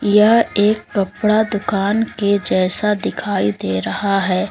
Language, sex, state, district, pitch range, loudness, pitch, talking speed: Hindi, female, Uttar Pradesh, Lalitpur, 185-210 Hz, -16 LUFS, 205 Hz, 135 wpm